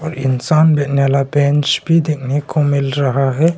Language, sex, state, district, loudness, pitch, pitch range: Hindi, male, Arunachal Pradesh, Longding, -15 LUFS, 145 Hz, 135-155 Hz